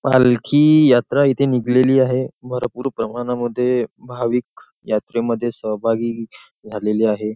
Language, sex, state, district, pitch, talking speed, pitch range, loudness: Marathi, male, Maharashtra, Nagpur, 125 Hz, 100 wpm, 115-130 Hz, -18 LUFS